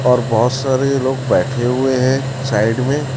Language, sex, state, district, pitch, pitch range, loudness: Hindi, male, Chhattisgarh, Raipur, 130 Hz, 125-135 Hz, -16 LUFS